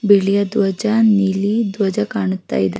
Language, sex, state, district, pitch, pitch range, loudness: Kannada, female, Karnataka, Mysore, 200 Hz, 195-215 Hz, -17 LUFS